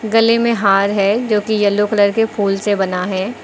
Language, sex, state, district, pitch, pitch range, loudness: Hindi, female, Uttar Pradesh, Lucknow, 205 Hz, 195-220 Hz, -15 LUFS